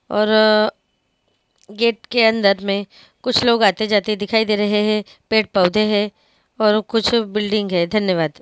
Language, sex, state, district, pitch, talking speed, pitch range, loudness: Hindi, female, Maharashtra, Dhule, 215 Hz, 150 wpm, 205-220 Hz, -17 LUFS